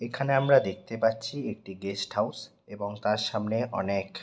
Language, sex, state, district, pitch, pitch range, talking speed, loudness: Bengali, male, West Bengal, Jhargram, 110 Hz, 100-120 Hz, 155 wpm, -29 LUFS